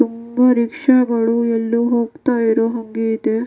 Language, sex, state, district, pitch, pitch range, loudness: Kannada, female, Karnataka, Dakshina Kannada, 235 Hz, 230-250 Hz, -17 LUFS